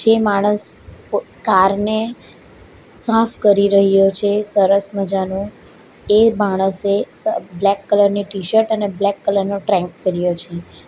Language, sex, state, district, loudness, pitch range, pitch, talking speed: Gujarati, female, Gujarat, Valsad, -17 LUFS, 195-210 Hz, 200 Hz, 130 wpm